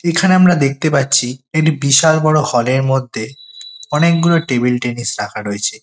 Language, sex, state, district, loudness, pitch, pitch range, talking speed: Bengali, male, West Bengal, Kolkata, -14 LUFS, 140 Hz, 125-160 Hz, 155 wpm